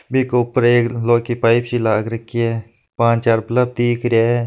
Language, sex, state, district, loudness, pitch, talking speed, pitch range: Marwari, male, Rajasthan, Nagaur, -17 LUFS, 120 Hz, 215 wpm, 115-120 Hz